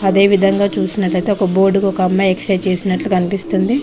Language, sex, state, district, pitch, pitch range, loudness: Telugu, female, Telangana, Mahabubabad, 195 Hz, 185-200 Hz, -15 LUFS